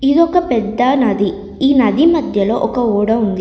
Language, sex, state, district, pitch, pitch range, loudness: Telugu, female, Telangana, Komaram Bheem, 245 Hz, 215-275 Hz, -14 LUFS